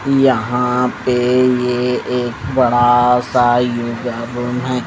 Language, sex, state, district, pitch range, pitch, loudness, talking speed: Hindi, male, Punjab, Pathankot, 120-125 Hz, 125 Hz, -15 LUFS, 110 wpm